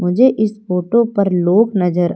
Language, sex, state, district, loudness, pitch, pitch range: Hindi, female, Madhya Pradesh, Umaria, -15 LUFS, 200 Hz, 180-220 Hz